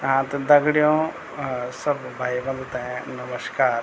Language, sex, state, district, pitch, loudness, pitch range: Garhwali, male, Uttarakhand, Tehri Garhwal, 135 Hz, -23 LUFS, 125-145 Hz